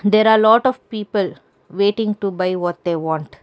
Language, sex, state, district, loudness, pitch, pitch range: English, female, Karnataka, Bangalore, -18 LUFS, 200 Hz, 175-220 Hz